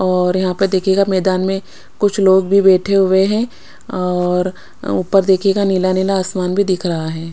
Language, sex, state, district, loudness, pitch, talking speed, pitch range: Hindi, female, Odisha, Khordha, -15 LUFS, 190 Hz, 180 wpm, 185-195 Hz